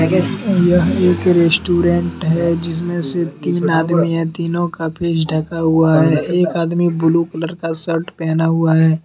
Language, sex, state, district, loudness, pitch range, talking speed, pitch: Hindi, male, Jharkhand, Deoghar, -16 LUFS, 160-175 Hz, 160 wpm, 165 Hz